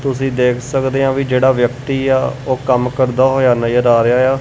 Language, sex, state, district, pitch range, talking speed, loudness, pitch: Punjabi, male, Punjab, Kapurthala, 125-135 Hz, 220 wpm, -14 LUFS, 130 Hz